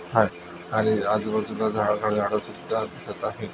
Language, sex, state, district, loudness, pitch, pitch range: Marathi, male, Maharashtra, Nagpur, -26 LUFS, 105 Hz, 105-110 Hz